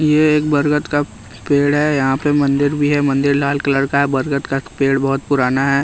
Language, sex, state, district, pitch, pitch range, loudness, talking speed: Hindi, male, Bihar, West Champaran, 140 Hz, 135-145 Hz, -16 LUFS, 225 wpm